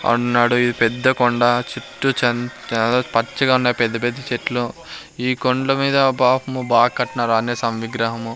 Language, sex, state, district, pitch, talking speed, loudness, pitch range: Telugu, male, Andhra Pradesh, Sri Satya Sai, 120 Hz, 145 wpm, -19 LUFS, 120-130 Hz